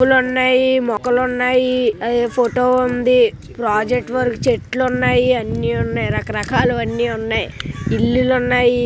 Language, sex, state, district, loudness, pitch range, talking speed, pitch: Telugu, male, Andhra Pradesh, Visakhapatnam, -17 LUFS, 235-255 Hz, 110 wpm, 245 Hz